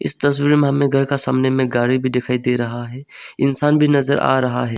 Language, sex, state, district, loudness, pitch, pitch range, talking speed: Hindi, male, Arunachal Pradesh, Longding, -16 LUFS, 130 Hz, 125-140 Hz, 250 wpm